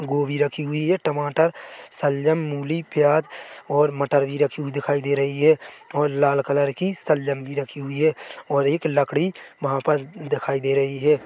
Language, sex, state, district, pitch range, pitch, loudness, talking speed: Hindi, male, Chhattisgarh, Bilaspur, 140-155 Hz, 145 Hz, -22 LUFS, 185 wpm